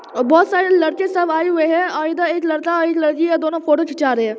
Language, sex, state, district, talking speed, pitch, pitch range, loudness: Hindi, male, Bihar, Muzaffarpur, 285 wpm, 325 Hz, 310-340 Hz, -17 LUFS